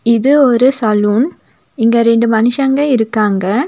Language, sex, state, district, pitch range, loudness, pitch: Tamil, female, Tamil Nadu, Nilgiris, 220-265 Hz, -12 LUFS, 235 Hz